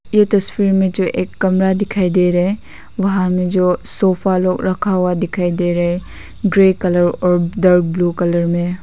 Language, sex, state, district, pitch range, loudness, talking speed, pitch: Hindi, female, Nagaland, Kohima, 175-190 Hz, -16 LUFS, 190 wpm, 185 Hz